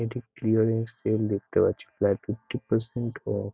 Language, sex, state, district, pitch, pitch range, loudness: Bengali, male, West Bengal, North 24 Parganas, 110 Hz, 105-115 Hz, -27 LUFS